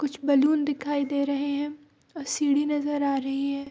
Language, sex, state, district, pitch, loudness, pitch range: Hindi, female, Bihar, Darbhanga, 285 Hz, -26 LUFS, 280-295 Hz